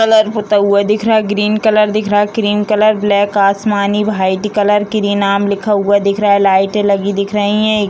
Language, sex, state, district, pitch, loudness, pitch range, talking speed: Hindi, female, Bihar, Sitamarhi, 205 Hz, -13 LUFS, 200-215 Hz, 220 wpm